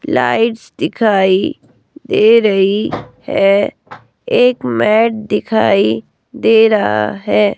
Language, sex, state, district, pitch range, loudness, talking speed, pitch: Hindi, female, Himachal Pradesh, Shimla, 195-225 Hz, -13 LUFS, 85 wpm, 215 Hz